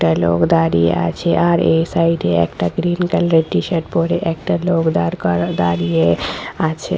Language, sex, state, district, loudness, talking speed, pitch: Bengali, female, West Bengal, Purulia, -16 LUFS, 180 wpm, 160 Hz